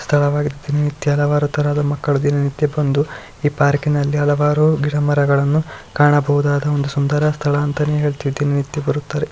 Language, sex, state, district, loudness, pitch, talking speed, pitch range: Kannada, male, Karnataka, Shimoga, -17 LUFS, 145 Hz, 130 wpm, 145-150 Hz